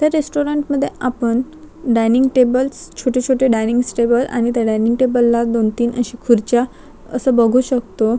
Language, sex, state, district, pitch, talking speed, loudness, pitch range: Marathi, female, Maharashtra, Chandrapur, 245 Hz, 160 wpm, -16 LUFS, 235-260 Hz